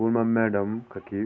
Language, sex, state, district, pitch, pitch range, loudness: Garhwali, male, Uttarakhand, Tehri Garhwal, 110 Hz, 100-115 Hz, -26 LUFS